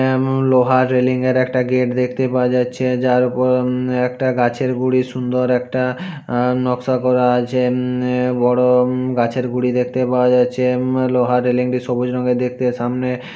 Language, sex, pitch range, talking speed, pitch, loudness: Bengali, male, 125-130 Hz, 155 wpm, 125 Hz, -17 LUFS